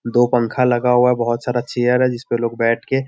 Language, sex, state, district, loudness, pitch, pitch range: Hindi, male, Bihar, Sitamarhi, -17 LUFS, 120 Hz, 120-125 Hz